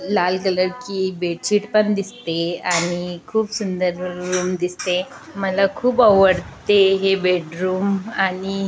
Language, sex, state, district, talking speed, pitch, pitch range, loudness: Marathi, female, Maharashtra, Chandrapur, 140 wpm, 190 Hz, 180-200 Hz, -20 LUFS